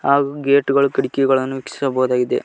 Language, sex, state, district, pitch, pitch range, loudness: Kannada, male, Karnataka, Koppal, 135 Hz, 130-140 Hz, -18 LUFS